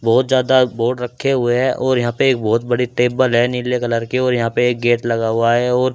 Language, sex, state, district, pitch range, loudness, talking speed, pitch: Hindi, male, Haryana, Charkhi Dadri, 120-130 Hz, -16 LUFS, 270 wpm, 125 Hz